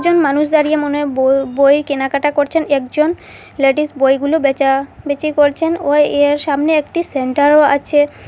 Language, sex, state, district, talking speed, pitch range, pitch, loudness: Bengali, female, Assam, Hailakandi, 130 wpm, 275-300 Hz, 290 Hz, -14 LUFS